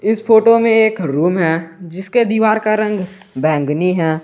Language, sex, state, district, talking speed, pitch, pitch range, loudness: Hindi, male, Jharkhand, Garhwa, 170 wpm, 195 Hz, 165-220 Hz, -14 LUFS